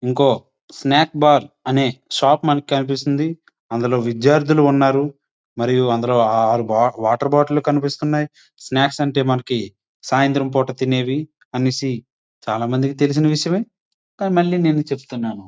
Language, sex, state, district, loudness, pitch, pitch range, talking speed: Telugu, male, Andhra Pradesh, Srikakulam, -18 LUFS, 135 Hz, 125-150 Hz, 115 wpm